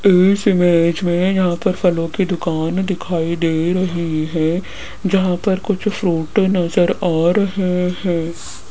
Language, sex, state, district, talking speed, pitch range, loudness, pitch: Hindi, female, Rajasthan, Jaipur, 140 wpm, 170-190 Hz, -17 LUFS, 180 Hz